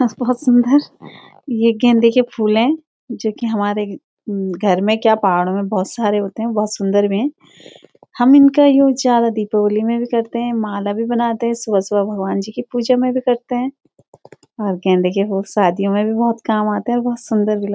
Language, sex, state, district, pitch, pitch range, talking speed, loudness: Hindi, female, Uttarakhand, Uttarkashi, 225 Hz, 205-245 Hz, 205 wpm, -16 LUFS